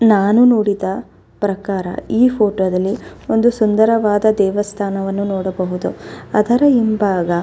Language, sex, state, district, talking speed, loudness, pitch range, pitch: Kannada, female, Karnataka, Dharwad, 105 wpm, -16 LUFS, 195-220 Hz, 205 Hz